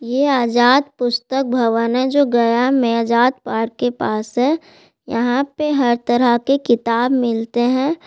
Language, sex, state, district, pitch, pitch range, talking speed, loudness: Hindi, female, Bihar, Gaya, 245 Hz, 235-270 Hz, 155 wpm, -17 LUFS